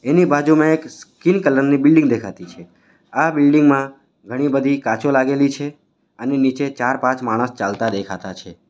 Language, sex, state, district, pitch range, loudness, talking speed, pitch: Gujarati, male, Gujarat, Valsad, 125-145 Hz, -17 LUFS, 160 wpm, 140 Hz